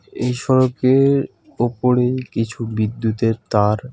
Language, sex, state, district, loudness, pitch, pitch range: Bengali, male, West Bengal, Alipurduar, -18 LUFS, 120 Hz, 115-130 Hz